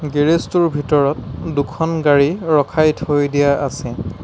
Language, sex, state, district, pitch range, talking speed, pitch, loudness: Assamese, male, Assam, Sonitpur, 145-160 Hz, 125 wpm, 145 Hz, -17 LUFS